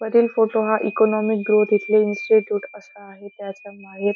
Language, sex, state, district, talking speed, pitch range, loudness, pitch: Marathi, female, Maharashtra, Solapur, 160 wpm, 200-220 Hz, -19 LUFS, 210 Hz